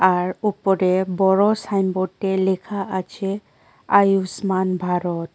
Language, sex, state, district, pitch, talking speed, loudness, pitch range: Bengali, female, Tripura, West Tripura, 190 Hz, 90 wpm, -20 LUFS, 185-195 Hz